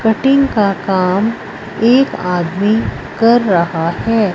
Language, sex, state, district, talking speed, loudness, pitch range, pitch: Hindi, female, Punjab, Fazilka, 110 wpm, -14 LUFS, 185-230 Hz, 210 Hz